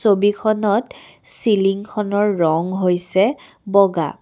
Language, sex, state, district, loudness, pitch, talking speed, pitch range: Assamese, female, Assam, Kamrup Metropolitan, -18 LUFS, 200 Hz, 85 wpm, 185-210 Hz